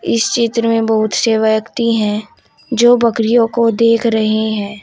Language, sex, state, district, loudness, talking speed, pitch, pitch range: Hindi, female, Uttar Pradesh, Saharanpur, -14 LUFS, 160 wpm, 225 Hz, 220-230 Hz